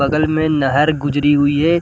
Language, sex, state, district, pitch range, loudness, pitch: Hindi, male, Bihar, Gaya, 145-155 Hz, -15 LUFS, 145 Hz